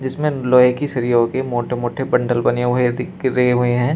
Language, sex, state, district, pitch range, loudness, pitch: Hindi, male, Uttar Pradesh, Shamli, 120-130 Hz, -18 LUFS, 125 Hz